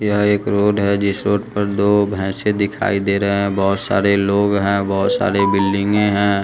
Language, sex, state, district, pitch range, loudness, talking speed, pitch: Hindi, male, Bihar, West Champaran, 100-105 Hz, -17 LUFS, 195 wpm, 100 Hz